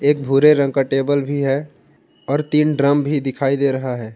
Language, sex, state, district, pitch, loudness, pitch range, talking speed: Hindi, male, Jharkhand, Ranchi, 140 Hz, -17 LUFS, 135-145 Hz, 230 wpm